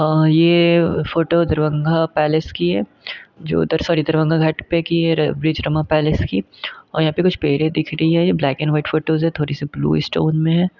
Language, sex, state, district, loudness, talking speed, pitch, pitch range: Hindi, male, Uttar Pradesh, Varanasi, -18 LUFS, 210 wpm, 155 Hz, 155-165 Hz